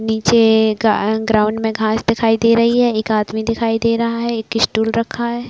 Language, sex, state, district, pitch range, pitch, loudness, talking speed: Hindi, female, Chhattisgarh, Bastar, 220-230 Hz, 225 Hz, -16 LUFS, 195 wpm